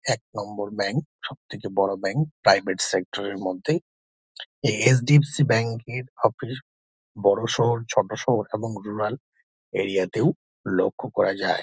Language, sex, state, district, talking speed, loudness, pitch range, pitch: Bengali, male, West Bengal, Dakshin Dinajpur, 160 wpm, -24 LUFS, 100-130 Hz, 110 Hz